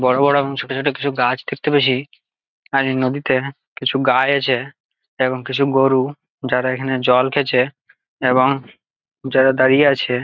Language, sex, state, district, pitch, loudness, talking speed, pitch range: Bengali, male, West Bengal, Jalpaiguri, 135 Hz, -17 LUFS, 150 wpm, 130-140 Hz